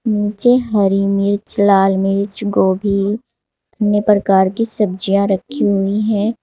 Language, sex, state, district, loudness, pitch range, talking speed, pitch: Hindi, female, Uttar Pradesh, Saharanpur, -15 LUFS, 195-215 Hz, 120 wpm, 200 Hz